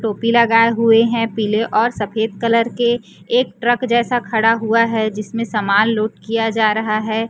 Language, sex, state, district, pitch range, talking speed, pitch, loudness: Hindi, female, Chhattisgarh, Raipur, 215-230 Hz, 180 wpm, 225 Hz, -16 LUFS